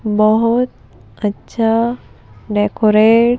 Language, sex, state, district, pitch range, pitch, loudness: Hindi, female, Madhya Pradesh, Bhopal, 200-230 Hz, 215 Hz, -15 LUFS